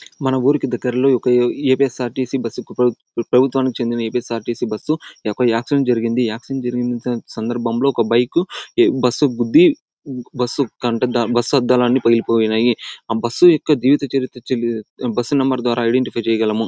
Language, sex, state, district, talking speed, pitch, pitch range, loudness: Telugu, male, Andhra Pradesh, Anantapur, 125 wpm, 125 Hz, 120-135 Hz, -18 LUFS